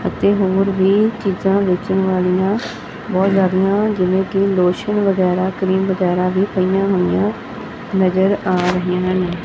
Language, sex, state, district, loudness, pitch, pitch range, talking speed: Punjabi, female, Punjab, Fazilka, -17 LUFS, 190 Hz, 185-200 Hz, 135 wpm